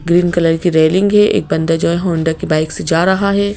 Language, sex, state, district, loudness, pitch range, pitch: Hindi, female, Madhya Pradesh, Bhopal, -14 LUFS, 165-195 Hz, 175 Hz